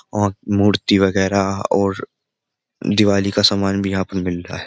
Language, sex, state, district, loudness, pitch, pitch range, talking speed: Hindi, male, Uttar Pradesh, Jyotiba Phule Nagar, -18 LUFS, 100 Hz, 95-100 Hz, 165 wpm